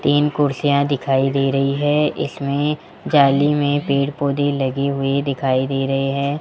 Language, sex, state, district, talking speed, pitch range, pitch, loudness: Hindi, male, Rajasthan, Jaipur, 160 wpm, 135-145 Hz, 140 Hz, -19 LUFS